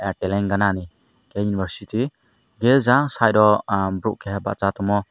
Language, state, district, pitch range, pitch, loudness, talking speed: Kokborok, Tripura, Dhalai, 100-115 Hz, 100 Hz, -21 LUFS, 140 wpm